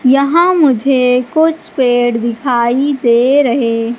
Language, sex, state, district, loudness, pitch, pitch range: Hindi, female, Madhya Pradesh, Katni, -12 LUFS, 255 Hz, 240-285 Hz